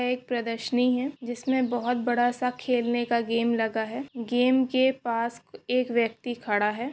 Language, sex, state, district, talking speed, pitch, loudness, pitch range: Hindi, female, Bihar, Saran, 175 wpm, 245 Hz, -26 LUFS, 235-250 Hz